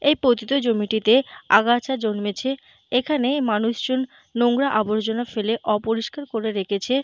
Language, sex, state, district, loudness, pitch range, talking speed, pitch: Bengali, female, Jharkhand, Jamtara, -22 LUFS, 220-265 Hz, 110 wpm, 240 Hz